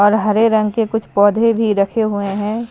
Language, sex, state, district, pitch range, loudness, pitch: Hindi, female, Himachal Pradesh, Shimla, 205-225 Hz, -16 LUFS, 215 Hz